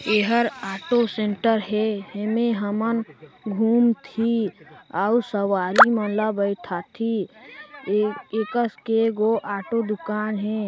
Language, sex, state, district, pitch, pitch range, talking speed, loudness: Chhattisgarhi, female, Chhattisgarh, Sarguja, 215 Hz, 205-230 Hz, 120 wpm, -23 LUFS